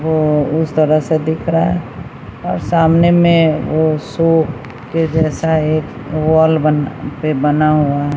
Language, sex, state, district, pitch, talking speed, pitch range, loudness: Hindi, female, Bihar, Patna, 155 Hz, 155 wpm, 150-160 Hz, -14 LUFS